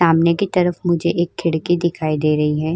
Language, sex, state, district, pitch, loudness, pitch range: Hindi, female, Uttar Pradesh, Varanasi, 170 Hz, -18 LUFS, 160-175 Hz